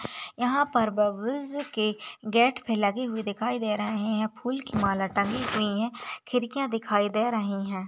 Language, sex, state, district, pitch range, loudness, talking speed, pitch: Hindi, female, Chhattisgarh, Raigarh, 210-245 Hz, -27 LUFS, 175 wpm, 220 Hz